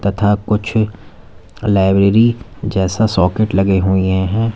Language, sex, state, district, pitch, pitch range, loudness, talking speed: Hindi, male, Uttar Pradesh, Lalitpur, 100 Hz, 95-110 Hz, -15 LUFS, 105 wpm